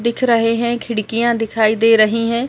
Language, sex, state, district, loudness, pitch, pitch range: Hindi, male, Maharashtra, Nagpur, -16 LUFS, 230 Hz, 225-235 Hz